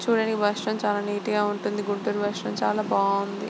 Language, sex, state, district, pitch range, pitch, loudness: Telugu, female, Andhra Pradesh, Guntur, 205-215 Hz, 205 Hz, -25 LUFS